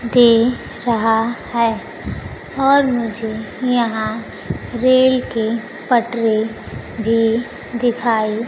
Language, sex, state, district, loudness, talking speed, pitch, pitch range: Hindi, female, Bihar, Kaimur, -18 LUFS, 80 wpm, 235 Hz, 225-245 Hz